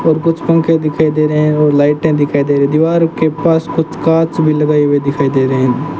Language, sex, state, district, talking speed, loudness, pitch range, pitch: Hindi, male, Rajasthan, Bikaner, 240 wpm, -12 LUFS, 145-160 Hz, 155 Hz